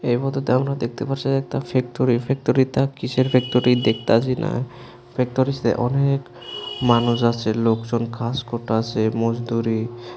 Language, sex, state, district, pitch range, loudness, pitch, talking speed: Bengali, male, Tripura, West Tripura, 115-130 Hz, -21 LUFS, 120 Hz, 125 wpm